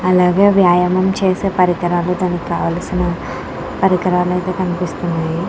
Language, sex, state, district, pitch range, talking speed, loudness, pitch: Telugu, female, Andhra Pradesh, Krishna, 175-185 Hz, 100 wpm, -16 LUFS, 180 Hz